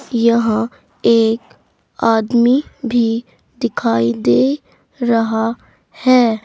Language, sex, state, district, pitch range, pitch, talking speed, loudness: Hindi, female, Uttar Pradesh, Saharanpur, 220-245 Hz, 230 Hz, 75 wpm, -16 LUFS